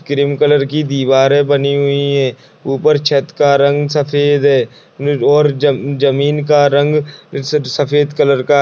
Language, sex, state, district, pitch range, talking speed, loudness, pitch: Hindi, male, Bihar, Purnia, 140-145 Hz, 160 wpm, -13 LUFS, 145 Hz